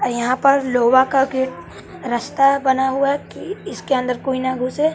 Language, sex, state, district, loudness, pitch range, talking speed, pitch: Hindi, male, Bihar, West Champaran, -18 LUFS, 255-275 Hz, 180 wpm, 265 Hz